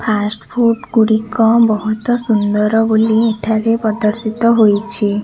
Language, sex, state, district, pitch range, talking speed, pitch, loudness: Odia, female, Odisha, Khordha, 215-225 Hz, 90 wpm, 220 Hz, -14 LUFS